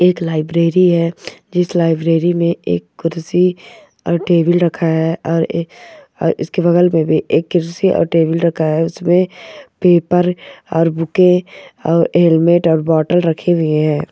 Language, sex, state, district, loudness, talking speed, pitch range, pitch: Hindi, female, Uttar Pradesh, Gorakhpur, -15 LUFS, 145 wpm, 165-180 Hz, 170 Hz